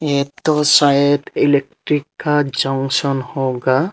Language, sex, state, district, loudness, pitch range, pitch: Hindi, male, Tripura, Unakoti, -16 LUFS, 135-150 Hz, 140 Hz